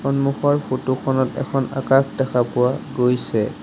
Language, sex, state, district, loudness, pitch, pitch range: Assamese, male, Assam, Sonitpur, -20 LUFS, 135 Hz, 130-140 Hz